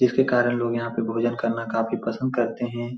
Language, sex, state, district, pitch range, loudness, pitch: Hindi, male, Bihar, Supaul, 115-120 Hz, -24 LUFS, 120 Hz